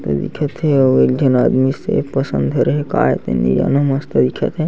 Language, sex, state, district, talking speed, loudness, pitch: Chhattisgarhi, male, Chhattisgarh, Sarguja, 215 wpm, -16 LUFS, 130 Hz